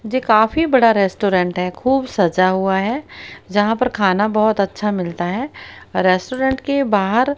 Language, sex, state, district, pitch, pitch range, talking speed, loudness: Hindi, female, Haryana, Rohtak, 210 Hz, 190-255 Hz, 155 wpm, -17 LUFS